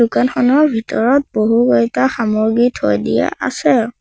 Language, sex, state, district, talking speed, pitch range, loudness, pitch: Assamese, male, Assam, Sonitpur, 105 wpm, 220-260 Hz, -15 LUFS, 235 Hz